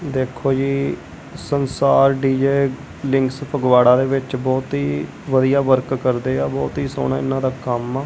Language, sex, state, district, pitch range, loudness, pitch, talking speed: Punjabi, male, Punjab, Kapurthala, 120-135 Hz, -19 LUFS, 130 Hz, 155 wpm